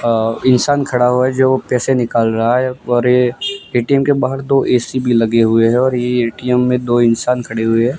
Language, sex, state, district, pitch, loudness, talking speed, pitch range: Hindi, male, Gujarat, Gandhinagar, 125 Hz, -14 LUFS, 215 wpm, 115-130 Hz